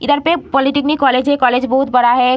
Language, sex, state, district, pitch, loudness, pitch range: Hindi, female, Bihar, Jamui, 270 Hz, -14 LUFS, 250-285 Hz